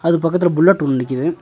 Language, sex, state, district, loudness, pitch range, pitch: Tamil, male, Tamil Nadu, Nilgiris, -16 LUFS, 145-175 Hz, 165 Hz